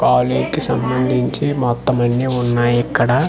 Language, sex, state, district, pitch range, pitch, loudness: Telugu, male, Andhra Pradesh, Manyam, 120-130 Hz, 125 Hz, -17 LUFS